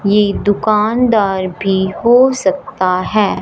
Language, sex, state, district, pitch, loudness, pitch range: Hindi, female, Punjab, Fazilka, 205 Hz, -14 LUFS, 190-225 Hz